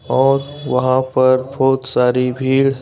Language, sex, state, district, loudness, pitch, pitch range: Hindi, male, Madhya Pradesh, Bhopal, -16 LUFS, 130 Hz, 130-135 Hz